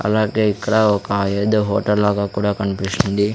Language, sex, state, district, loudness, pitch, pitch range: Telugu, male, Andhra Pradesh, Sri Satya Sai, -18 LUFS, 105 Hz, 100-105 Hz